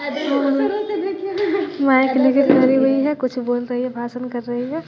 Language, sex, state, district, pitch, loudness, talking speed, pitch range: Hindi, female, Bihar, West Champaran, 270 Hz, -19 LUFS, 135 wpm, 250-300 Hz